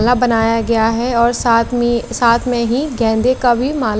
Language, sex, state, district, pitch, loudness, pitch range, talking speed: Hindi, female, Chandigarh, Chandigarh, 235 Hz, -15 LUFS, 230-245 Hz, 210 wpm